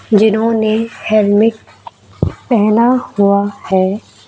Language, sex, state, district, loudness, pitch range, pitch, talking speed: Hindi, female, Chhattisgarh, Raipur, -13 LUFS, 205-225 Hz, 215 Hz, 70 wpm